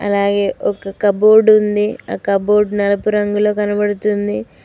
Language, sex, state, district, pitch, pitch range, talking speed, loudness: Telugu, female, Telangana, Mahabubabad, 205 Hz, 200-210 Hz, 105 wpm, -15 LUFS